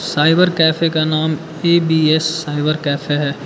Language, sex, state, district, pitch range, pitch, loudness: Hindi, male, Arunachal Pradesh, Lower Dibang Valley, 150-160 Hz, 160 Hz, -15 LUFS